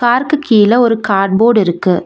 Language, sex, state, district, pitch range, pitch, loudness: Tamil, female, Tamil Nadu, Nilgiris, 195-240 Hz, 220 Hz, -11 LUFS